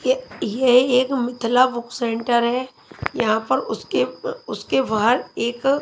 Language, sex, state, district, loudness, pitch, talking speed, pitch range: Hindi, female, Punjab, Kapurthala, -21 LUFS, 245 Hz, 125 wpm, 235-260 Hz